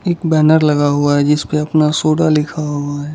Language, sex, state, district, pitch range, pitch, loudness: Hindi, male, Gujarat, Valsad, 145-155 Hz, 150 Hz, -14 LUFS